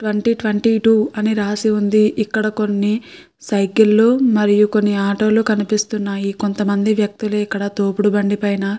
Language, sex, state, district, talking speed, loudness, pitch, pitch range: Telugu, female, Andhra Pradesh, Guntur, 150 wpm, -17 LUFS, 210 Hz, 205-215 Hz